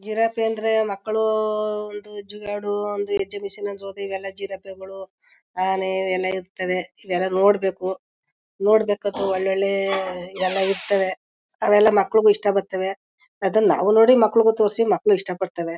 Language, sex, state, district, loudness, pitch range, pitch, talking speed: Kannada, female, Karnataka, Mysore, -21 LUFS, 190-215 Hz, 200 Hz, 125 wpm